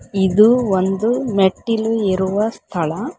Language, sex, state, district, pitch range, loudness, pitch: Kannada, female, Karnataka, Koppal, 190-225 Hz, -17 LUFS, 205 Hz